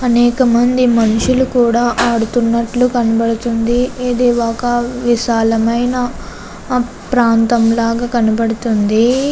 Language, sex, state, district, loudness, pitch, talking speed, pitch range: Telugu, female, Andhra Pradesh, Chittoor, -14 LUFS, 240 Hz, 75 wpm, 230-245 Hz